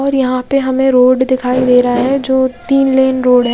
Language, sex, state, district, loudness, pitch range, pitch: Hindi, female, Odisha, Khordha, -12 LUFS, 250-265 Hz, 260 Hz